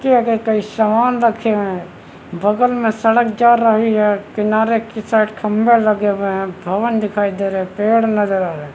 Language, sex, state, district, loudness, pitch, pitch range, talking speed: Hindi, male, Chhattisgarh, Balrampur, -16 LUFS, 215 Hz, 200-230 Hz, 205 wpm